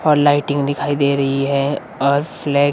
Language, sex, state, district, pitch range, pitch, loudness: Hindi, male, Himachal Pradesh, Shimla, 140-145 Hz, 140 Hz, -17 LUFS